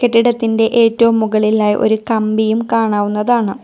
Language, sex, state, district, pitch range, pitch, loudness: Malayalam, female, Kerala, Kollam, 215-230 Hz, 225 Hz, -14 LUFS